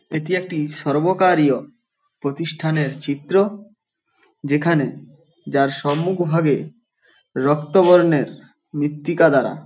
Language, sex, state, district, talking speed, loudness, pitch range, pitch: Bengali, male, West Bengal, Paschim Medinipur, 75 wpm, -19 LUFS, 145-190 Hz, 165 Hz